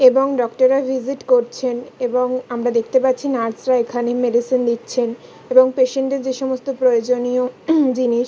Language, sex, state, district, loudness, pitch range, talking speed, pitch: Bengali, female, West Bengal, Kolkata, -18 LUFS, 245-260 Hz, 150 wpm, 255 Hz